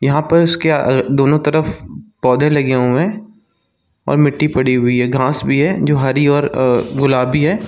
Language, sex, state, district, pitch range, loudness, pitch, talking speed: Hindi, male, Chhattisgarh, Raigarh, 130-150 Hz, -14 LUFS, 140 Hz, 170 wpm